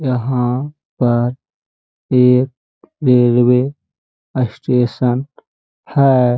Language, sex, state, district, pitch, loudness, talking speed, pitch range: Hindi, male, Uttar Pradesh, Jalaun, 125 Hz, -16 LUFS, 55 wpm, 125-130 Hz